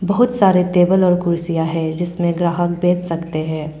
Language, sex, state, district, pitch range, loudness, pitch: Hindi, female, Arunachal Pradesh, Papum Pare, 165-180 Hz, -17 LUFS, 175 Hz